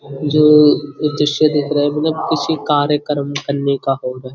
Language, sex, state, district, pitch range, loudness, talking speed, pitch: Hindi, male, Uttarakhand, Uttarkashi, 140-150 Hz, -15 LUFS, 190 wpm, 145 Hz